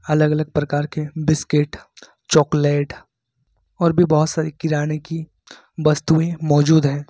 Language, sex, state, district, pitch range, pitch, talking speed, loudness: Hindi, male, Uttar Pradesh, Lucknow, 145-160 Hz, 155 Hz, 125 wpm, -19 LUFS